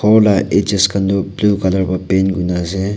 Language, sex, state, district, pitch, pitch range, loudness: Nagamese, male, Nagaland, Kohima, 95 Hz, 95-100 Hz, -15 LUFS